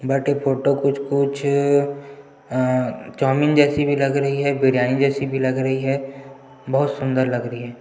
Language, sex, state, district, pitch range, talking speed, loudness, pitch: Hindi, male, Chhattisgarh, Jashpur, 130-140 Hz, 185 wpm, -20 LUFS, 135 Hz